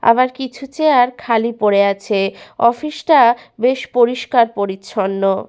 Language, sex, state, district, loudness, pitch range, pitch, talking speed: Bengali, female, West Bengal, Paschim Medinipur, -16 LUFS, 200-255 Hz, 235 Hz, 120 wpm